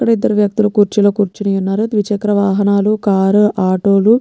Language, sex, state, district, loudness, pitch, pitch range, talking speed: Telugu, female, Telangana, Nalgonda, -14 LUFS, 205 Hz, 200-210 Hz, 140 wpm